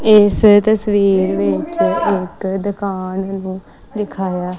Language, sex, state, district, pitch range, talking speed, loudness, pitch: Punjabi, female, Punjab, Kapurthala, 185-205 Hz, 90 wpm, -16 LUFS, 195 Hz